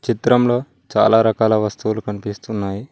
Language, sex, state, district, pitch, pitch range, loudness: Telugu, male, Telangana, Mahabubabad, 110 Hz, 105-115 Hz, -18 LUFS